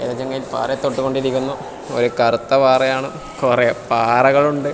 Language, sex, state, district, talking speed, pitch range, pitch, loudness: Malayalam, male, Kerala, Kasaragod, 115 wpm, 125-135 Hz, 130 Hz, -17 LUFS